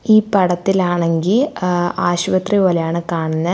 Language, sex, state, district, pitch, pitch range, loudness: Malayalam, female, Kerala, Thiruvananthapuram, 180 Hz, 170-195 Hz, -16 LUFS